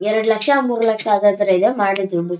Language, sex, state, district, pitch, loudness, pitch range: Kannada, male, Karnataka, Shimoga, 215 Hz, -16 LUFS, 195-225 Hz